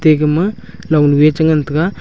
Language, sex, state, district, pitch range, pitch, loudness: Wancho, male, Arunachal Pradesh, Longding, 150-165 Hz, 155 Hz, -13 LUFS